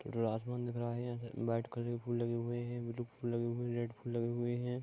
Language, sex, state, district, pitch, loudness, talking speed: Hindi, male, Bihar, Gopalganj, 120 Hz, -39 LUFS, 310 wpm